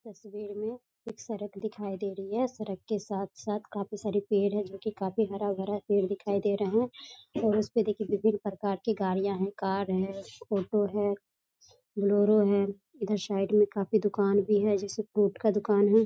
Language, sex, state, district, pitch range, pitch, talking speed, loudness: Hindi, female, Bihar, East Champaran, 200-215 Hz, 205 Hz, 185 wpm, -30 LUFS